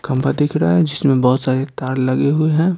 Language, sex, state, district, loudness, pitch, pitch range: Hindi, male, Bihar, Patna, -17 LUFS, 135 Hz, 130-150 Hz